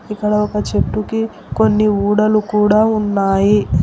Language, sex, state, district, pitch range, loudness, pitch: Telugu, female, Telangana, Hyderabad, 210-215 Hz, -15 LUFS, 210 Hz